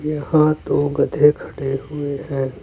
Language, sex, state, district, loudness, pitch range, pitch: Hindi, male, Uttar Pradesh, Saharanpur, -19 LUFS, 135-150 Hz, 145 Hz